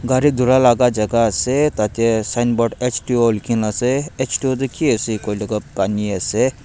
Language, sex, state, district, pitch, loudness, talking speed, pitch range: Nagamese, male, Nagaland, Dimapur, 120 Hz, -18 LUFS, 190 wpm, 110-130 Hz